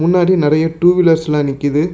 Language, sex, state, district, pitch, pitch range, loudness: Tamil, male, Tamil Nadu, Namakkal, 160 Hz, 150-175 Hz, -13 LUFS